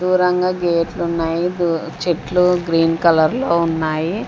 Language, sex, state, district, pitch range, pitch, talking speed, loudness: Telugu, female, Andhra Pradesh, Sri Satya Sai, 165-180 Hz, 170 Hz, 100 wpm, -17 LUFS